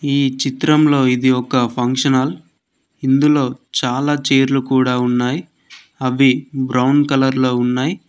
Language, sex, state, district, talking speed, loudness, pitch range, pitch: Telugu, male, Telangana, Mahabubabad, 125 wpm, -16 LUFS, 125-140 Hz, 130 Hz